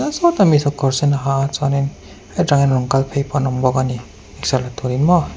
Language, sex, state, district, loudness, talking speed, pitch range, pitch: Mizo, male, Mizoram, Aizawl, -17 LUFS, 245 wpm, 130-145 Hz, 140 Hz